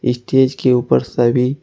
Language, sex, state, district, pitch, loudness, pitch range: Hindi, male, Jharkhand, Ranchi, 125 Hz, -15 LUFS, 120-130 Hz